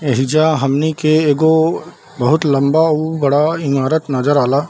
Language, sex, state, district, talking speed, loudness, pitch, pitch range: Hindi, male, Bihar, Darbhanga, 140 wpm, -14 LUFS, 150 Hz, 140-160 Hz